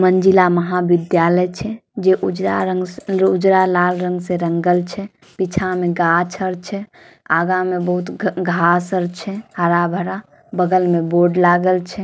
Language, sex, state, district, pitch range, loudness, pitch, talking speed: Maithili, female, Bihar, Samastipur, 175-185 Hz, -17 LUFS, 180 Hz, 160 wpm